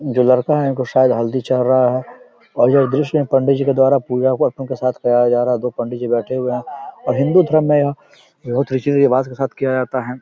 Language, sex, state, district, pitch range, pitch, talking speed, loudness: Hindi, male, Bihar, Samastipur, 125-140 Hz, 130 Hz, 250 wpm, -17 LUFS